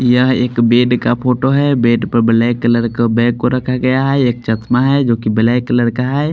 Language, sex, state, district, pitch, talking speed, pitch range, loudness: Hindi, male, Bihar, Patna, 125 Hz, 225 wpm, 120-130 Hz, -14 LUFS